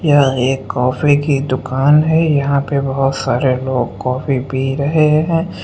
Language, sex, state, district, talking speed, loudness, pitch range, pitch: Hindi, male, Uttar Pradesh, Lucknow, 160 wpm, -15 LUFS, 130-145 Hz, 135 Hz